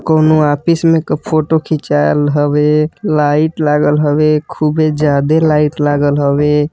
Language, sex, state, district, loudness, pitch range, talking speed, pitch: Bhojpuri, male, Uttar Pradesh, Deoria, -12 LUFS, 145-155 Hz, 140 wpm, 150 Hz